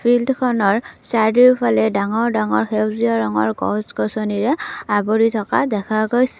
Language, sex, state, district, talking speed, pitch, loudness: Assamese, female, Assam, Kamrup Metropolitan, 110 wpm, 215 Hz, -18 LUFS